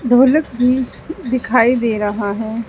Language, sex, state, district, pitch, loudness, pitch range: Hindi, female, Uttar Pradesh, Saharanpur, 245 Hz, -16 LUFS, 225-255 Hz